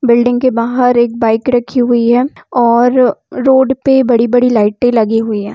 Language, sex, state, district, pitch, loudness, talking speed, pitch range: Hindi, female, Bihar, Vaishali, 245 Hz, -11 LUFS, 160 wpm, 235-255 Hz